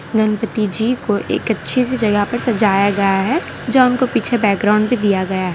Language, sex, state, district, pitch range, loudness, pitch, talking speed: Hindi, female, Gujarat, Valsad, 200-240 Hz, -16 LUFS, 215 Hz, 205 wpm